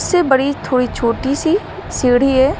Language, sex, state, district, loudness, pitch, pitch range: Hindi, female, Uttar Pradesh, Lucknow, -16 LUFS, 270 Hz, 255-295 Hz